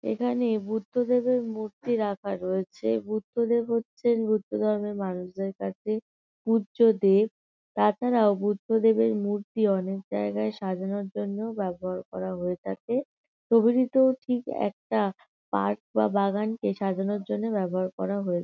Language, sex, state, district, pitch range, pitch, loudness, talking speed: Bengali, female, West Bengal, North 24 Parganas, 190-230 Hz, 210 Hz, -27 LUFS, 110 wpm